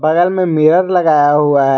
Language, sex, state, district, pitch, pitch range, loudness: Hindi, male, Jharkhand, Garhwa, 155 Hz, 145-175 Hz, -12 LUFS